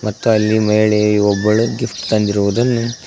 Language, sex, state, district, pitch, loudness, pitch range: Kannada, male, Karnataka, Koppal, 105 Hz, -15 LUFS, 105-115 Hz